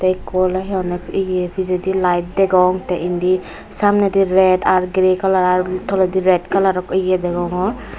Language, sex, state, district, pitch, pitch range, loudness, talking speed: Chakma, female, Tripura, Unakoti, 185 Hz, 180-190 Hz, -17 LUFS, 160 wpm